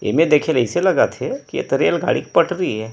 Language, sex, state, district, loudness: Chhattisgarhi, male, Chhattisgarh, Rajnandgaon, -18 LUFS